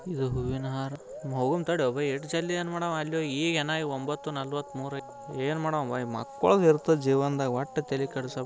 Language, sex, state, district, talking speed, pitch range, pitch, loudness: Kannada, male, Karnataka, Bijapur, 165 wpm, 135-155 Hz, 140 Hz, -29 LUFS